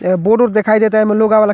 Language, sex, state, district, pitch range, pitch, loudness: Bhojpuri, male, Bihar, Muzaffarpur, 210-220 Hz, 215 Hz, -12 LUFS